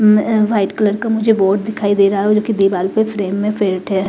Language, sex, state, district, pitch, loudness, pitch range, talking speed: Hindi, female, Bihar, West Champaran, 205 Hz, -15 LUFS, 195-215 Hz, 265 wpm